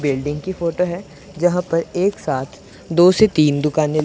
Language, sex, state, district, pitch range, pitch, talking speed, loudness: Hindi, male, Punjab, Pathankot, 145-180 Hz, 160 Hz, 180 wpm, -18 LUFS